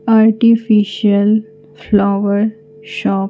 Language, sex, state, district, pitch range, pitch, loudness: Hindi, female, Madhya Pradesh, Bhopal, 195-220 Hz, 205 Hz, -14 LUFS